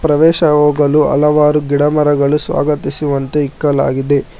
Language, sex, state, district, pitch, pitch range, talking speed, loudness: Kannada, male, Karnataka, Bangalore, 150 Hz, 145-150 Hz, 80 wpm, -13 LUFS